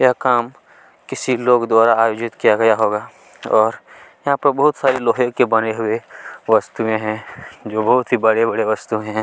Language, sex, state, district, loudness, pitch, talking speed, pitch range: Hindi, male, Chhattisgarh, Kabirdham, -17 LUFS, 115 Hz, 170 wpm, 110-125 Hz